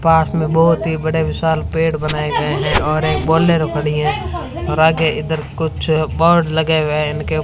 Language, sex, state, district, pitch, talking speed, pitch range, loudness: Hindi, female, Rajasthan, Bikaner, 160 Hz, 185 wpm, 155-160 Hz, -16 LUFS